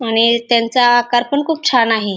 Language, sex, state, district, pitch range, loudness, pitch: Marathi, female, Maharashtra, Dhule, 230-250 Hz, -14 LUFS, 240 Hz